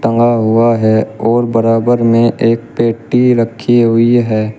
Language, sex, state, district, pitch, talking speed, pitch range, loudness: Hindi, male, Uttar Pradesh, Shamli, 115 Hz, 145 wpm, 115-120 Hz, -12 LUFS